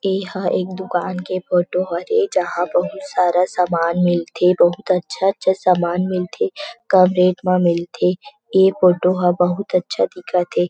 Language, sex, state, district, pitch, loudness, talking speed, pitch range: Chhattisgarhi, female, Chhattisgarh, Rajnandgaon, 180 Hz, -18 LUFS, 155 wpm, 175-190 Hz